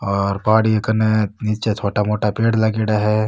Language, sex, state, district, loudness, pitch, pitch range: Rajasthani, male, Rajasthan, Nagaur, -18 LUFS, 110 Hz, 105-110 Hz